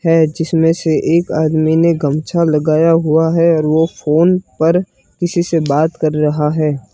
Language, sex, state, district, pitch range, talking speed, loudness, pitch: Hindi, male, Gujarat, Gandhinagar, 155-165 Hz, 175 wpm, -14 LUFS, 160 Hz